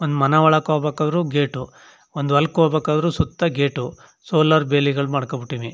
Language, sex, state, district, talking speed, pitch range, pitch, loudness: Kannada, male, Karnataka, Chamarajanagar, 175 wpm, 140-155 Hz, 145 Hz, -19 LUFS